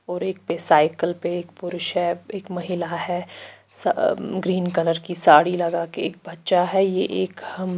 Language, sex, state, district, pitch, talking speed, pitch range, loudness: Hindi, female, Chandigarh, Chandigarh, 180 Hz, 185 wpm, 170-185 Hz, -22 LUFS